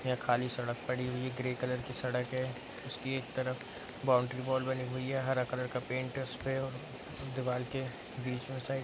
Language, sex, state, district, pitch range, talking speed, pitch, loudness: Hindi, male, Bihar, Araria, 125-130 Hz, 210 wpm, 130 Hz, -36 LUFS